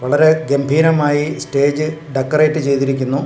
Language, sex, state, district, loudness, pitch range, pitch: Malayalam, male, Kerala, Kasaragod, -15 LUFS, 140-155 Hz, 145 Hz